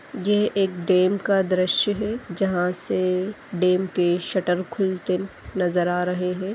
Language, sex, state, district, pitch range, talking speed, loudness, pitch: Hindi, female, Bihar, Purnia, 180-195 Hz, 155 wpm, -23 LUFS, 185 Hz